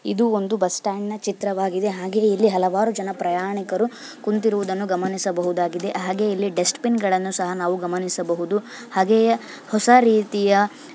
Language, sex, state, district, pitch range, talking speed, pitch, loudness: Kannada, female, Karnataka, Bijapur, 185-215 Hz, 135 wpm, 200 Hz, -21 LUFS